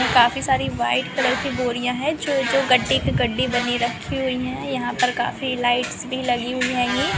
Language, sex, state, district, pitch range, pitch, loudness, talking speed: Hindi, female, Karnataka, Belgaum, 245-265 Hz, 250 Hz, -21 LUFS, 200 wpm